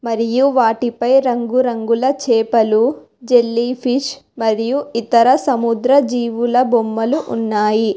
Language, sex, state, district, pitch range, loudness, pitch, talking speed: Telugu, female, Telangana, Hyderabad, 230-255 Hz, -16 LUFS, 240 Hz, 90 wpm